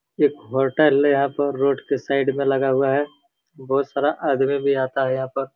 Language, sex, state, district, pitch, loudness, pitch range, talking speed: Hindi, male, Bihar, Supaul, 140 Hz, -21 LUFS, 135-145 Hz, 215 wpm